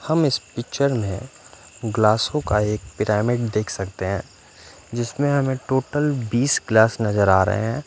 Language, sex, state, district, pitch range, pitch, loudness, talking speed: Hindi, male, Punjab, Fazilka, 105-130 Hz, 110 Hz, -21 LUFS, 150 wpm